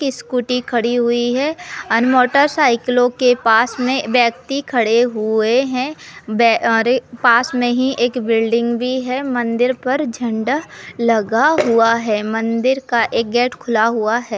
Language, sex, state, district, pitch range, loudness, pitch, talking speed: Hindi, female, Uttar Pradesh, Budaun, 230-255 Hz, -16 LUFS, 240 Hz, 160 wpm